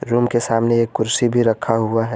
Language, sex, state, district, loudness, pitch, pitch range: Hindi, male, Jharkhand, Garhwa, -18 LUFS, 115 Hz, 115-120 Hz